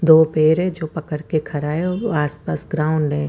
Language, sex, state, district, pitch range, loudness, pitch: Hindi, female, Chandigarh, Chandigarh, 150-160 Hz, -20 LUFS, 155 Hz